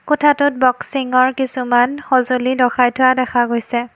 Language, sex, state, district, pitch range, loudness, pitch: Assamese, female, Assam, Kamrup Metropolitan, 245-265 Hz, -16 LUFS, 255 Hz